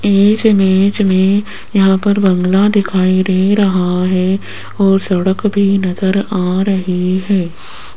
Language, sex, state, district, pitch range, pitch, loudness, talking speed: Hindi, female, Rajasthan, Jaipur, 185-200 Hz, 190 Hz, -13 LUFS, 130 wpm